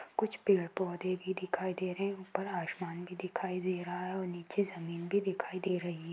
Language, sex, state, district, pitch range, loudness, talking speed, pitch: Hindi, female, Bihar, Sitamarhi, 175-190 Hz, -36 LUFS, 205 wpm, 185 Hz